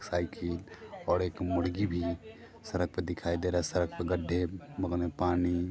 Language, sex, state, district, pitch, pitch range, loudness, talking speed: Hindi, male, Bihar, Sitamarhi, 90 Hz, 85-90 Hz, -33 LUFS, 170 wpm